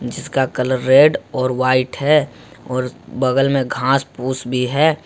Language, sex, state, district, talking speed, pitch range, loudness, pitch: Hindi, male, Jharkhand, Ranchi, 155 wpm, 125-135 Hz, -17 LUFS, 130 Hz